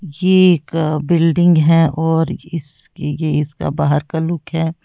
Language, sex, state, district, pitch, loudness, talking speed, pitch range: Hindi, female, Uttar Pradesh, Lalitpur, 165 Hz, -16 LUFS, 150 wpm, 155-170 Hz